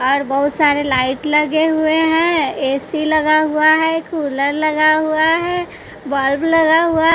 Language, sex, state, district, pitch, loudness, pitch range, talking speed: Hindi, female, Bihar, West Champaran, 310 Hz, -15 LUFS, 285-320 Hz, 150 wpm